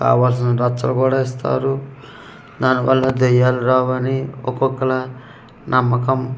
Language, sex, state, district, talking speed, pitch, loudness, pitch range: Telugu, male, Andhra Pradesh, Manyam, 105 wpm, 130 Hz, -18 LUFS, 125-130 Hz